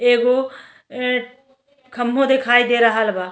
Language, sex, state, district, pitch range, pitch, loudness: Bhojpuri, female, Uttar Pradesh, Deoria, 240-265 Hz, 250 Hz, -17 LUFS